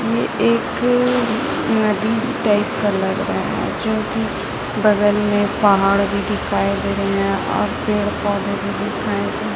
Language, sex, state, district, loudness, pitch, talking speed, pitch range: Hindi, female, Chhattisgarh, Raipur, -18 LUFS, 205 Hz, 145 wpm, 200-220 Hz